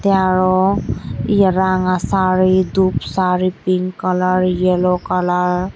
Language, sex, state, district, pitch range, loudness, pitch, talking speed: Chakma, male, Tripura, Dhalai, 180-185 Hz, -16 LUFS, 185 Hz, 125 wpm